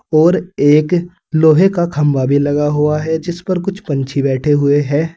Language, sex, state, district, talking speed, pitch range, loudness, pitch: Hindi, male, Uttar Pradesh, Saharanpur, 185 wpm, 145-175 Hz, -14 LUFS, 155 Hz